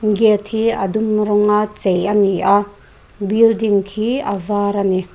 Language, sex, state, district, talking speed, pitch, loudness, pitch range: Mizo, female, Mizoram, Aizawl, 150 wpm, 210 Hz, -16 LUFS, 200-215 Hz